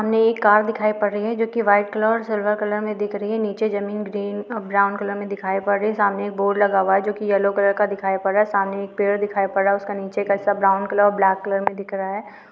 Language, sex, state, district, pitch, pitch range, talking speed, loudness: Hindi, female, Rajasthan, Nagaur, 205 Hz, 200-210 Hz, 300 wpm, -21 LUFS